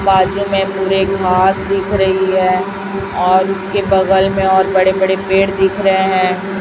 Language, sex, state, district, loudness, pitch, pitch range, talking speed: Hindi, female, Chhattisgarh, Raipur, -14 LUFS, 190 Hz, 190-195 Hz, 165 wpm